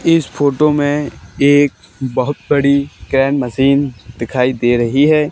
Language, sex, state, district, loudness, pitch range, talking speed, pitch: Hindi, male, Haryana, Charkhi Dadri, -14 LUFS, 125-145 Hz, 135 wpm, 140 Hz